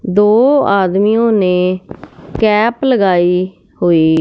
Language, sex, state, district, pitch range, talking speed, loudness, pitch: Hindi, male, Punjab, Fazilka, 180-225 Hz, 85 wpm, -12 LUFS, 200 Hz